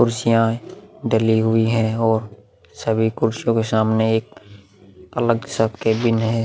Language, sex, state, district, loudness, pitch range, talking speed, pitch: Hindi, male, Bihar, Vaishali, -19 LUFS, 110-115 Hz, 130 wpm, 110 Hz